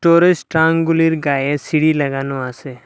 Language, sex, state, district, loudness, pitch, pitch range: Bengali, male, Assam, Hailakandi, -16 LUFS, 155 Hz, 135-165 Hz